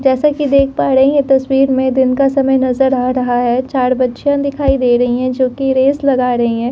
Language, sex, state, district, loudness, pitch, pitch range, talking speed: Hindi, female, Delhi, New Delhi, -13 LUFS, 265 Hz, 255-275 Hz, 225 wpm